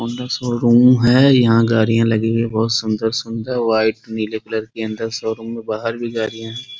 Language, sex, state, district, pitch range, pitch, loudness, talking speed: Hindi, male, Bihar, Muzaffarpur, 110-120 Hz, 115 Hz, -17 LUFS, 185 wpm